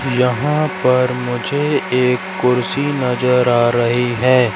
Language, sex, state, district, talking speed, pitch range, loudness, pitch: Hindi, male, Madhya Pradesh, Katni, 120 wpm, 125-135 Hz, -16 LUFS, 125 Hz